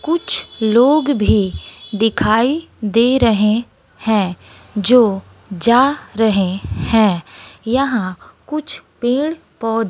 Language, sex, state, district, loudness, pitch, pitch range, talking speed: Hindi, female, Bihar, West Champaran, -16 LUFS, 225 Hz, 205-255 Hz, 90 wpm